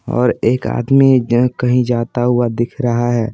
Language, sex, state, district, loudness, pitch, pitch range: Hindi, male, Bihar, Patna, -15 LUFS, 120 Hz, 120-125 Hz